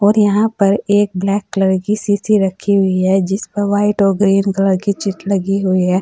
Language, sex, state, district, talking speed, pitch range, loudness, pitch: Hindi, female, Uttar Pradesh, Saharanpur, 210 wpm, 190-205 Hz, -15 LUFS, 195 Hz